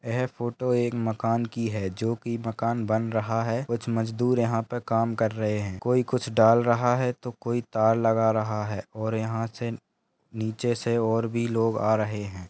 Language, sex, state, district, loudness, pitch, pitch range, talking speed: Hindi, male, Bihar, Bhagalpur, -26 LUFS, 115 Hz, 110-120 Hz, 200 wpm